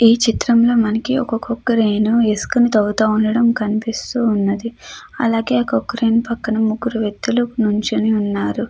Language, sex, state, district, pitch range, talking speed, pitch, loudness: Telugu, female, Andhra Pradesh, Krishna, 210-235 Hz, 115 wpm, 225 Hz, -17 LUFS